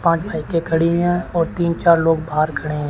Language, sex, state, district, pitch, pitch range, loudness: Hindi, male, Chandigarh, Chandigarh, 165 Hz, 155-170 Hz, -18 LUFS